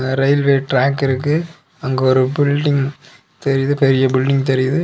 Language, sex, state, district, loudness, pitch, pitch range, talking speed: Tamil, male, Tamil Nadu, Kanyakumari, -16 LUFS, 135 Hz, 130-145 Hz, 125 wpm